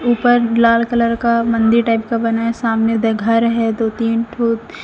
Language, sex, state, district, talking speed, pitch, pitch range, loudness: Hindi, female, Madhya Pradesh, Umaria, 185 wpm, 230 Hz, 225-235 Hz, -15 LUFS